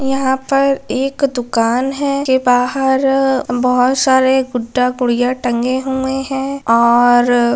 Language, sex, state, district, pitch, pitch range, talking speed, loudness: Hindi, female, Bihar, Jamui, 260 Hz, 245-270 Hz, 125 wpm, -14 LUFS